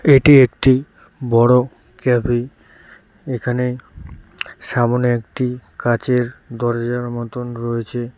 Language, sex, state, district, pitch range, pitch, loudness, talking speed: Bengali, male, West Bengal, Cooch Behar, 120-125 Hz, 125 Hz, -18 LUFS, 80 wpm